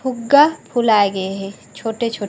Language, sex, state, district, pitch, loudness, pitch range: Chhattisgarhi, female, Chhattisgarh, Raigarh, 225 Hz, -16 LUFS, 200-260 Hz